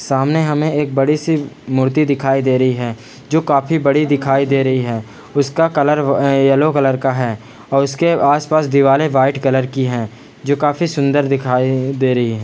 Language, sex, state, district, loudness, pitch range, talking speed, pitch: Hindi, male, Bihar, Jamui, -15 LUFS, 130-150 Hz, 190 wpm, 135 Hz